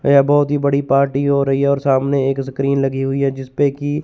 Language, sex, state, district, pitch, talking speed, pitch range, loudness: Hindi, male, Chandigarh, Chandigarh, 140 Hz, 250 wpm, 135-140 Hz, -17 LUFS